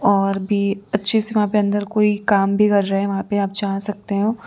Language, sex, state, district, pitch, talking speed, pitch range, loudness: Hindi, female, Gujarat, Valsad, 205 Hz, 255 wpm, 200-210 Hz, -19 LUFS